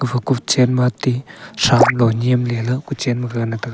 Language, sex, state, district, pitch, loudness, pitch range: Wancho, male, Arunachal Pradesh, Longding, 125 Hz, -17 LUFS, 120-125 Hz